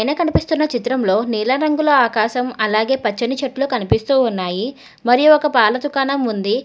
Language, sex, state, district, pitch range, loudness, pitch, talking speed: Telugu, female, Telangana, Hyderabad, 220-275 Hz, -17 LUFS, 250 Hz, 135 wpm